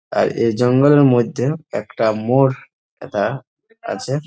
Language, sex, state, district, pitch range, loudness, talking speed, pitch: Bengali, male, West Bengal, Jalpaiguri, 115-140 Hz, -17 LUFS, 110 wpm, 130 Hz